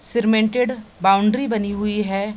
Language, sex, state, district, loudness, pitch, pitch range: Hindi, female, Bihar, East Champaran, -19 LUFS, 215 Hz, 205-230 Hz